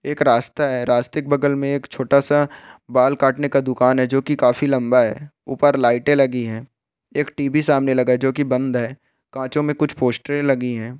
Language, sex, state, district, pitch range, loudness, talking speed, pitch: Hindi, male, Bihar, Bhagalpur, 125-145 Hz, -19 LUFS, 205 wpm, 135 Hz